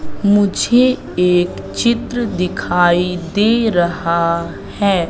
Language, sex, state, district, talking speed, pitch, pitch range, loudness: Hindi, female, Madhya Pradesh, Katni, 80 wpm, 180 Hz, 175-225 Hz, -16 LUFS